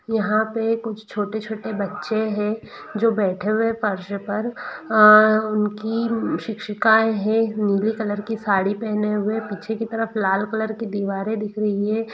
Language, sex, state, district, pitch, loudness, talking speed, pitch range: Hindi, female, Bihar, East Champaran, 215 Hz, -21 LUFS, 200 wpm, 210-225 Hz